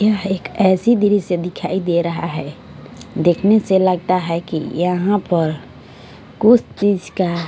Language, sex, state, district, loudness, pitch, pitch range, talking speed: Hindi, female, Punjab, Fazilka, -17 LUFS, 180 Hz, 170-200 Hz, 145 wpm